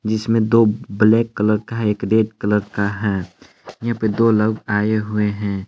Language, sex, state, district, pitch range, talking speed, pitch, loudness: Hindi, male, Jharkhand, Palamu, 105-115 Hz, 200 wpm, 110 Hz, -18 LUFS